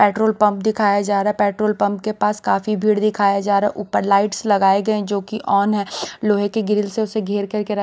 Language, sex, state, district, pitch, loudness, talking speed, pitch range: Hindi, female, Bihar, West Champaran, 205 Hz, -18 LUFS, 235 wpm, 200-215 Hz